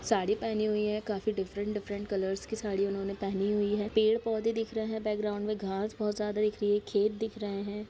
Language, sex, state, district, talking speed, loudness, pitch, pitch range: Hindi, female, Bihar, Gaya, 225 wpm, -32 LUFS, 210 Hz, 205-215 Hz